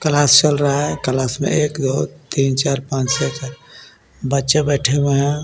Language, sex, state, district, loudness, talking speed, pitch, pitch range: Hindi, male, Jharkhand, Garhwa, -17 LUFS, 185 wpm, 140 Hz, 135-145 Hz